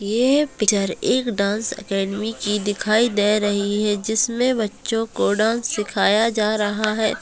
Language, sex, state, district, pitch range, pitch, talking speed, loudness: Hindi, female, Bihar, Purnia, 205-230 Hz, 215 Hz, 160 wpm, -20 LUFS